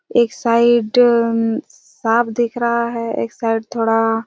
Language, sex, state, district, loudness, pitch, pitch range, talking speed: Hindi, female, Chhattisgarh, Raigarh, -17 LUFS, 230 Hz, 225-235 Hz, 140 wpm